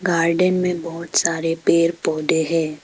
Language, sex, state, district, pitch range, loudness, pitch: Hindi, female, Arunachal Pradesh, Papum Pare, 165-170 Hz, -19 LUFS, 165 Hz